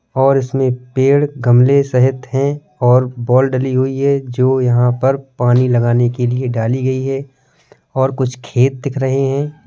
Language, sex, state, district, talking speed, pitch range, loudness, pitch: Hindi, male, Uttar Pradesh, Jalaun, 165 wpm, 125-135 Hz, -15 LUFS, 130 Hz